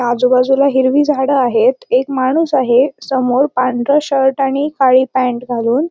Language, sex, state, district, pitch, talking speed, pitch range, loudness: Marathi, female, Maharashtra, Sindhudurg, 265 Hz, 140 wpm, 255-280 Hz, -14 LUFS